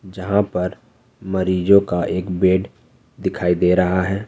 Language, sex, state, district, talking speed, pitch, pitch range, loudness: Hindi, male, Jharkhand, Ranchi, 140 wpm, 95 Hz, 90-100 Hz, -19 LUFS